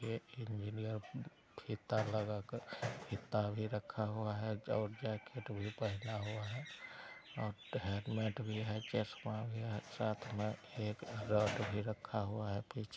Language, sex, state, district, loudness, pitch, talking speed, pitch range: Hindi, male, Bihar, Araria, -42 LUFS, 110 Hz, 150 wpm, 105-110 Hz